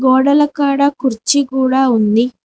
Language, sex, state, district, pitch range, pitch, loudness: Telugu, female, Telangana, Mahabubabad, 255-280 Hz, 265 Hz, -14 LUFS